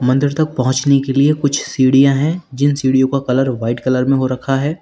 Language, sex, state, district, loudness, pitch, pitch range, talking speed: Hindi, male, Uttar Pradesh, Lalitpur, -15 LUFS, 135 Hz, 130-145 Hz, 225 wpm